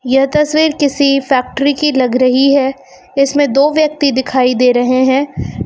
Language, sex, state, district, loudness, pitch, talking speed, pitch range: Hindi, female, Uttar Pradesh, Lucknow, -12 LUFS, 275 Hz, 160 wpm, 255-285 Hz